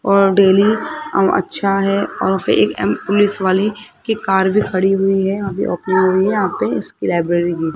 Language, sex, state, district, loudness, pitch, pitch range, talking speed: Hindi, male, Rajasthan, Jaipur, -16 LUFS, 195 Hz, 190-205 Hz, 170 wpm